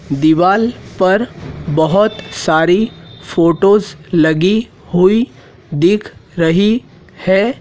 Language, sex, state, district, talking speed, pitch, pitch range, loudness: Hindi, male, Madhya Pradesh, Dhar, 80 wpm, 180 Hz, 160-200 Hz, -14 LUFS